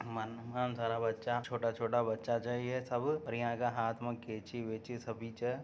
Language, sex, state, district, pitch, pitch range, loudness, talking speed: Marwari, male, Rajasthan, Nagaur, 120 Hz, 115-120 Hz, -37 LUFS, 200 wpm